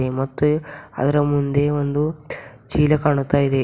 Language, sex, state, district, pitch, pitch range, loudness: Kannada, female, Karnataka, Bidar, 145 Hz, 140-150 Hz, -20 LUFS